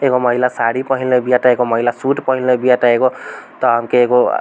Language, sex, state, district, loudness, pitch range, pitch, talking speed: Bhojpuri, male, Bihar, East Champaran, -15 LUFS, 120-130 Hz, 125 Hz, 205 wpm